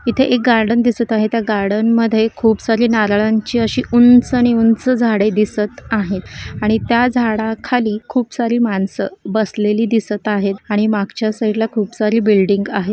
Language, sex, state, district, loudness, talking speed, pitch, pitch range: Marathi, female, Maharashtra, Solapur, -15 LUFS, 160 wpm, 220 Hz, 210-235 Hz